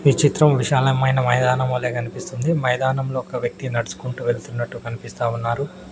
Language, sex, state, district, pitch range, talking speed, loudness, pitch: Telugu, male, Telangana, Mahabubabad, 120-135 Hz, 130 wpm, -21 LUFS, 125 Hz